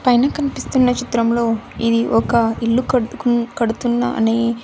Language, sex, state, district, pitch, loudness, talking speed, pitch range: Telugu, female, Andhra Pradesh, Sri Satya Sai, 235 Hz, -18 LUFS, 115 wpm, 230-250 Hz